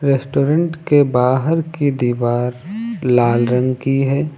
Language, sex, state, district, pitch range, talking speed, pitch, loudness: Hindi, male, Uttar Pradesh, Lucknow, 125-150 Hz, 125 wpm, 135 Hz, -17 LUFS